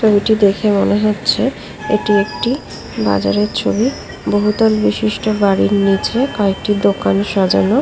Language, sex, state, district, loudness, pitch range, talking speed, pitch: Bengali, female, West Bengal, Paschim Medinipur, -15 LUFS, 195-215 Hz, 125 wpm, 205 Hz